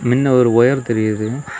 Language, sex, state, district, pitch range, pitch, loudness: Tamil, male, Tamil Nadu, Kanyakumari, 115-130 Hz, 120 Hz, -15 LUFS